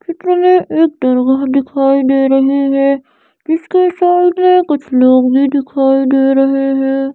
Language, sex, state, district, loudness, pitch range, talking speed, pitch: Hindi, female, Madhya Pradesh, Bhopal, -12 LUFS, 270-330 Hz, 145 wpm, 275 Hz